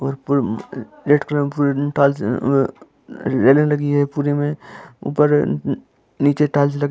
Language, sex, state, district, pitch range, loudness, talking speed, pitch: Hindi, male, Jharkhand, Jamtara, 140-145 Hz, -18 LUFS, 35 wpm, 145 Hz